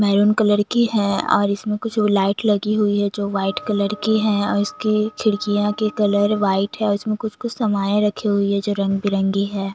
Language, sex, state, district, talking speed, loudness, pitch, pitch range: Hindi, female, Chhattisgarh, Jashpur, 205 wpm, -19 LUFS, 205 Hz, 200-215 Hz